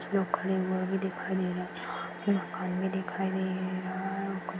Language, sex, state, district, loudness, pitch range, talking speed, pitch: Hindi, female, Chhattisgarh, Balrampur, -32 LUFS, 185-190 Hz, 185 wpm, 190 Hz